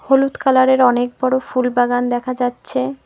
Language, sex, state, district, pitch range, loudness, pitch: Bengali, female, West Bengal, Cooch Behar, 245-260 Hz, -17 LUFS, 250 Hz